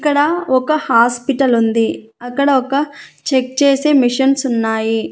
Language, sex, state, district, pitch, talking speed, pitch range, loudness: Telugu, female, Andhra Pradesh, Annamaya, 265 Hz, 115 wpm, 235-285 Hz, -15 LUFS